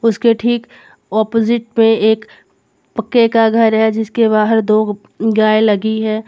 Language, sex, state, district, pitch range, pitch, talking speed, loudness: Hindi, female, Jharkhand, Garhwa, 215-230 Hz, 220 Hz, 145 wpm, -14 LUFS